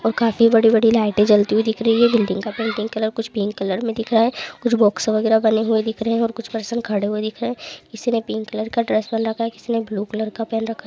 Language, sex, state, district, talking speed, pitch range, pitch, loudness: Hindi, female, West Bengal, Paschim Medinipur, 290 wpm, 215-230 Hz, 225 Hz, -19 LUFS